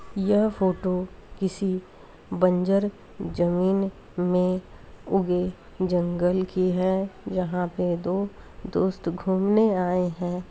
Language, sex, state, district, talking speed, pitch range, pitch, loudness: Hindi, female, Uttar Pradesh, Deoria, 95 wpm, 180-190 Hz, 185 Hz, -25 LUFS